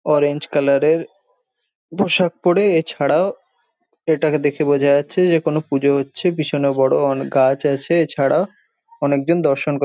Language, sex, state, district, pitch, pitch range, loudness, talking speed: Bengali, male, West Bengal, Jhargram, 150 Hz, 140-165 Hz, -18 LUFS, 145 wpm